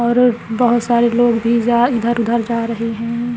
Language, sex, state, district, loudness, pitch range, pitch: Hindi, female, Chhattisgarh, Raigarh, -16 LUFS, 230-240 Hz, 235 Hz